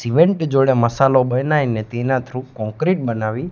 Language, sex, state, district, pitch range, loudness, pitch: Gujarati, male, Gujarat, Gandhinagar, 120-140 Hz, -18 LUFS, 130 Hz